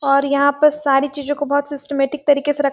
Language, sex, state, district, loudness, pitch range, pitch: Hindi, female, Chhattisgarh, Sarguja, -17 LUFS, 280-290 Hz, 285 Hz